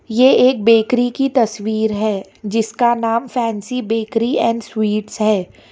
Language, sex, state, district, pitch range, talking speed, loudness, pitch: Hindi, female, Karnataka, Bangalore, 215-240 Hz, 135 wpm, -17 LUFS, 225 Hz